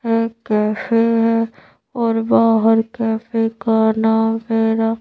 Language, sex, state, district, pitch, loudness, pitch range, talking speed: Hindi, female, Madhya Pradesh, Bhopal, 225 Hz, -17 LUFS, 225-230 Hz, 110 wpm